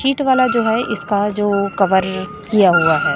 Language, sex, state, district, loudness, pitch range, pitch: Hindi, female, Chhattisgarh, Raipur, -16 LUFS, 200-230 Hz, 205 Hz